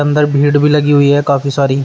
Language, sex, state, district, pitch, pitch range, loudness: Hindi, male, Uttar Pradesh, Shamli, 145 Hz, 140-145 Hz, -11 LUFS